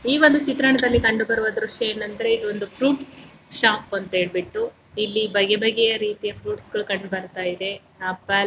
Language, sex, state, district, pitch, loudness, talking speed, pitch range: Kannada, male, Karnataka, Mysore, 215 Hz, -20 LUFS, 155 wpm, 200-235 Hz